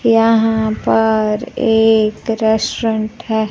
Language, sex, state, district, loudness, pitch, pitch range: Hindi, female, Bihar, Kaimur, -15 LUFS, 220 Hz, 220-225 Hz